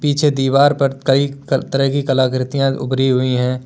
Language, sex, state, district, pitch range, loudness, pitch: Hindi, male, Uttar Pradesh, Lalitpur, 130-140 Hz, -16 LUFS, 135 Hz